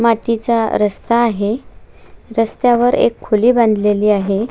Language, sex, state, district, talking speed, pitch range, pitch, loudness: Marathi, female, Maharashtra, Sindhudurg, 105 wpm, 210-235 Hz, 225 Hz, -15 LUFS